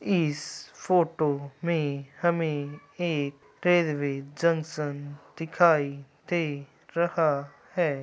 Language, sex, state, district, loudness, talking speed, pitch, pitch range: Hindi, male, Uttar Pradesh, Muzaffarnagar, -27 LUFS, 75 wpm, 150 Hz, 145-170 Hz